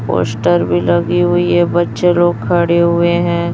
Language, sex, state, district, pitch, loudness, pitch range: Hindi, female, Chhattisgarh, Raipur, 170 Hz, -13 LUFS, 110-175 Hz